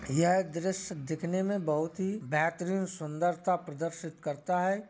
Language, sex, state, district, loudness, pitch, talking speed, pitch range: Hindi, male, Uttar Pradesh, Jalaun, -32 LUFS, 175 Hz, 160 wpm, 160-190 Hz